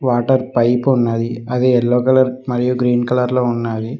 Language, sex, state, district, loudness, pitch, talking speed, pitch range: Telugu, male, Telangana, Mahabubabad, -16 LUFS, 125 Hz, 165 wpm, 120-125 Hz